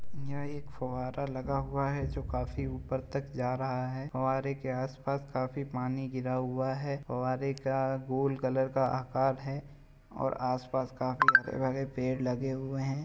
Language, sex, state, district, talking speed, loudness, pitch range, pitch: Hindi, male, Uttar Pradesh, Jalaun, 170 wpm, -33 LUFS, 130-135 Hz, 130 Hz